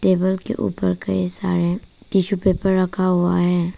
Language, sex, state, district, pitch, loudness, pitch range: Hindi, female, Arunachal Pradesh, Papum Pare, 185 Hz, -19 LUFS, 175-190 Hz